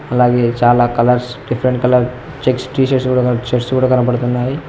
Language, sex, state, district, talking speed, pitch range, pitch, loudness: Telugu, male, Telangana, Mahabubabad, 140 wpm, 120-130 Hz, 125 Hz, -15 LUFS